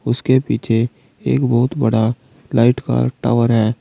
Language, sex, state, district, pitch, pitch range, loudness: Hindi, male, Uttar Pradesh, Saharanpur, 120 Hz, 115-125 Hz, -17 LUFS